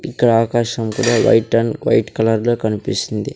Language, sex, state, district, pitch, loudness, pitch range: Telugu, male, Andhra Pradesh, Sri Satya Sai, 115 Hz, -16 LUFS, 110-120 Hz